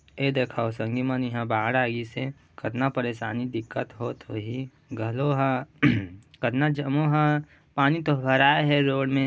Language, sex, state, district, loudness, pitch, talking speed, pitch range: Chhattisgarhi, male, Chhattisgarh, Raigarh, -26 LUFS, 130 Hz, 160 wpm, 120-140 Hz